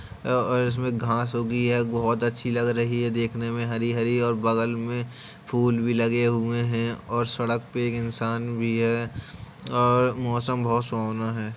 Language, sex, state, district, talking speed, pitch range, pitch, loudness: Hindi, male, Uttar Pradesh, Jalaun, 175 wpm, 115-120 Hz, 120 Hz, -25 LUFS